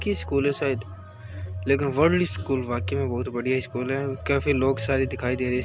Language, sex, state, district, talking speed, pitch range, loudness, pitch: Hindi, male, Uttar Pradesh, Hamirpur, 225 wpm, 105-135 Hz, -25 LUFS, 130 Hz